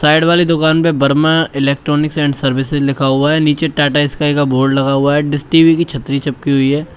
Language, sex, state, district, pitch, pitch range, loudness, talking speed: Hindi, male, Uttar Pradesh, Shamli, 145 Hz, 140-155 Hz, -13 LUFS, 225 wpm